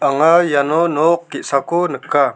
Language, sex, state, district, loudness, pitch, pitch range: Garo, male, Meghalaya, South Garo Hills, -15 LUFS, 160 Hz, 140-170 Hz